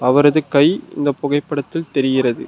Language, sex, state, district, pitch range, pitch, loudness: Tamil, male, Tamil Nadu, Nilgiris, 135-145 Hz, 145 Hz, -17 LUFS